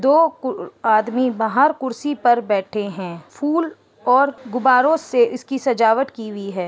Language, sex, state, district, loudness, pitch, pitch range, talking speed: Hindi, female, Uttar Pradesh, Ghazipur, -19 LUFS, 250 Hz, 220-275 Hz, 150 wpm